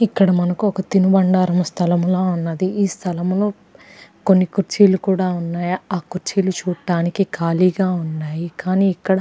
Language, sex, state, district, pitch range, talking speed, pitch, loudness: Telugu, female, Andhra Pradesh, Krishna, 175-195 Hz, 130 wpm, 185 Hz, -18 LUFS